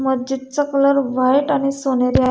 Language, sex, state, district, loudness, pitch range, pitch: Marathi, female, Maharashtra, Dhule, -18 LUFS, 260-280 Hz, 270 Hz